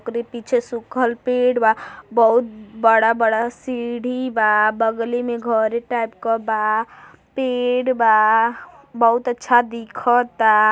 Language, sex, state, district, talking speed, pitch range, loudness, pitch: Bhojpuri, female, Uttar Pradesh, Gorakhpur, 110 wpm, 225-245 Hz, -19 LUFS, 235 Hz